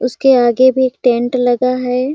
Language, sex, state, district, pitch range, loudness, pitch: Hindi, female, Chhattisgarh, Sarguja, 245-260 Hz, -13 LUFS, 250 Hz